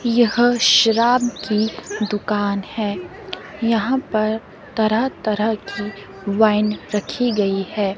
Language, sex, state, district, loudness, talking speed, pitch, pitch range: Hindi, female, Himachal Pradesh, Shimla, -19 LUFS, 105 wpm, 215 Hz, 205-230 Hz